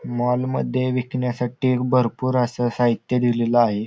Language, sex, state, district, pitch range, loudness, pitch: Marathi, male, Maharashtra, Pune, 120-125 Hz, -21 LUFS, 125 Hz